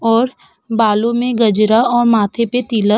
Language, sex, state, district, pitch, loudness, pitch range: Hindi, female, Uttar Pradesh, Budaun, 230 Hz, -14 LUFS, 215-240 Hz